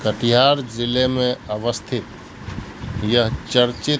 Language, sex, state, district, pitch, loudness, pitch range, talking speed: Hindi, male, Bihar, Katihar, 120 Hz, -19 LUFS, 110-125 Hz, 90 wpm